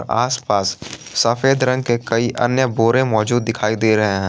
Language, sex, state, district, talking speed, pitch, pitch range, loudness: Hindi, male, Jharkhand, Garhwa, 170 wpm, 115 Hz, 110-125 Hz, -17 LUFS